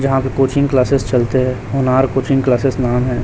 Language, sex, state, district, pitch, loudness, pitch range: Hindi, male, Chhattisgarh, Raipur, 130 Hz, -15 LUFS, 125-135 Hz